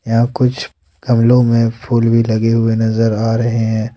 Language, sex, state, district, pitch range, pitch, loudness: Hindi, male, Jharkhand, Ranchi, 115-120 Hz, 115 Hz, -14 LUFS